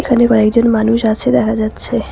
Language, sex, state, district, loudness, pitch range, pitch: Bengali, female, West Bengal, Cooch Behar, -13 LUFS, 220-235 Hz, 225 Hz